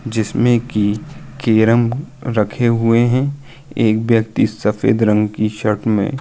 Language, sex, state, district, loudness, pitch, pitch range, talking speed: Hindi, male, Uttar Pradesh, Jalaun, -16 LUFS, 115 Hz, 105-120 Hz, 135 wpm